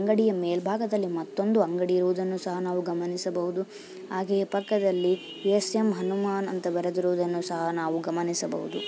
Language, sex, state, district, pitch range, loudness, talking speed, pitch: Kannada, female, Karnataka, Bijapur, 175-200 Hz, -27 LUFS, 110 wpm, 185 Hz